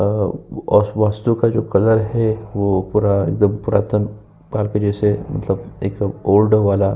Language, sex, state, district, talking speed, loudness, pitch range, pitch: Hindi, male, Uttar Pradesh, Jyotiba Phule Nagar, 130 wpm, -18 LUFS, 100-110 Hz, 105 Hz